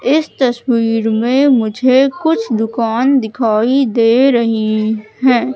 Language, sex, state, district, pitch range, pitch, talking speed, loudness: Hindi, female, Madhya Pradesh, Katni, 225-265 Hz, 240 Hz, 110 wpm, -13 LUFS